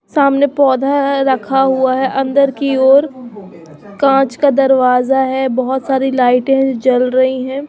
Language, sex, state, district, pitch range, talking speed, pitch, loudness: Hindi, female, Chandigarh, Chandigarh, 255-275 Hz, 165 wpm, 265 Hz, -13 LUFS